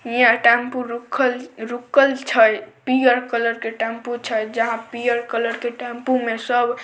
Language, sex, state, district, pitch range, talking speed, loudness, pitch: Maithili, female, Bihar, Samastipur, 230-245 Hz, 160 wpm, -20 LUFS, 240 Hz